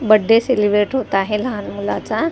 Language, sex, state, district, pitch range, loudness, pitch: Marathi, female, Maharashtra, Mumbai Suburban, 210-250 Hz, -17 LUFS, 215 Hz